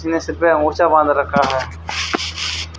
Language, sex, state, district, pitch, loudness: Hindi, male, Haryana, Charkhi Dadri, 140 Hz, -17 LUFS